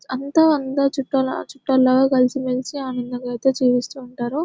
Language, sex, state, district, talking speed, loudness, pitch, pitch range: Telugu, female, Telangana, Nalgonda, 135 wpm, -20 LUFS, 265 Hz, 255-275 Hz